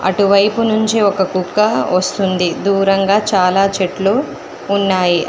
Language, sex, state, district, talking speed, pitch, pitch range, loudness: Telugu, female, Telangana, Mahabubabad, 115 wpm, 195 Hz, 185-200 Hz, -14 LUFS